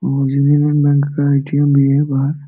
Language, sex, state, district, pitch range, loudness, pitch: Hindi, male, Bihar, Jamui, 140-145 Hz, -14 LUFS, 145 Hz